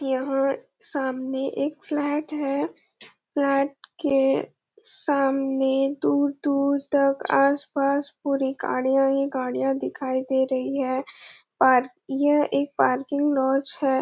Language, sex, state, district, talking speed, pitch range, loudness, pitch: Hindi, female, Chhattisgarh, Bastar, 110 wpm, 270-285 Hz, -24 LUFS, 275 Hz